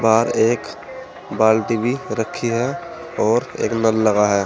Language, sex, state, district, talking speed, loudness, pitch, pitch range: Hindi, male, Uttar Pradesh, Saharanpur, 150 wpm, -19 LUFS, 115 Hz, 110-125 Hz